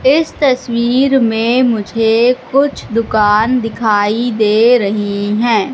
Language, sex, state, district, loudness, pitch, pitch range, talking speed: Hindi, female, Madhya Pradesh, Katni, -13 LUFS, 230 Hz, 215-250 Hz, 105 wpm